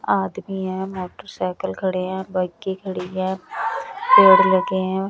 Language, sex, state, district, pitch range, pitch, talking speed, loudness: Hindi, female, Bihar, West Champaran, 185-195 Hz, 190 Hz, 130 wpm, -20 LUFS